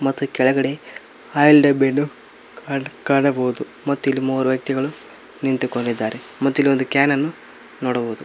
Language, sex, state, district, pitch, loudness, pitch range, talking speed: Kannada, male, Karnataka, Koppal, 135 Hz, -19 LUFS, 130-140 Hz, 100 wpm